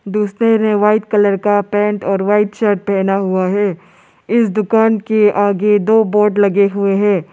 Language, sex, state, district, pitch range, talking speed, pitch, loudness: Hindi, male, Arunachal Pradesh, Lower Dibang Valley, 200-210 Hz, 170 wpm, 205 Hz, -14 LUFS